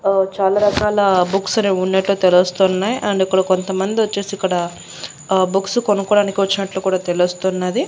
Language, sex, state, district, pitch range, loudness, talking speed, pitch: Telugu, female, Andhra Pradesh, Annamaya, 185-200 Hz, -17 LUFS, 120 wpm, 195 Hz